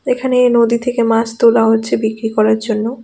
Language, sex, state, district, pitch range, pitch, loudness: Bengali, female, West Bengal, Alipurduar, 225-240 Hz, 230 Hz, -14 LUFS